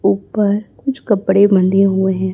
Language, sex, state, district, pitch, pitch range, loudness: Hindi, male, Chhattisgarh, Raipur, 195 Hz, 190-205 Hz, -15 LUFS